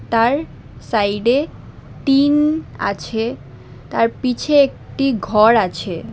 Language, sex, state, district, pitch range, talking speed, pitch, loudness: Bengali, female, Assam, Hailakandi, 205-275 Hz, 90 wpm, 230 Hz, -17 LUFS